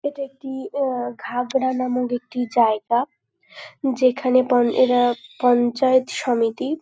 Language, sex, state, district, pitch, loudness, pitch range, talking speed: Bengali, female, West Bengal, North 24 Parganas, 255 Hz, -21 LUFS, 245-265 Hz, 105 wpm